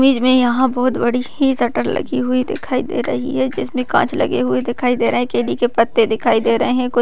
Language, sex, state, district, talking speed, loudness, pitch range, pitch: Hindi, female, Bihar, Madhepura, 220 wpm, -17 LUFS, 230-255 Hz, 245 Hz